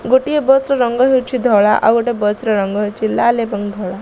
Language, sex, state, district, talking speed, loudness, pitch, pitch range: Odia, female, Odisha, Malkangiri, 225 wpm, -15 LUFS, 230 Hz, 210-255 Hz